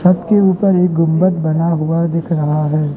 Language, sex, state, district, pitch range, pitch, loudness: Hindi, male, Madhya Pradesh, Katni, 155-180 Hz, 165 Hz, -14 LUFS